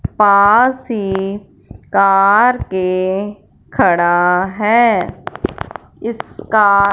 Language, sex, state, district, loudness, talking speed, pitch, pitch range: Hindi, female, Punjab, Fazilka, -14 LUFS, 60 wpm, 200 Hz, 185-215 Hz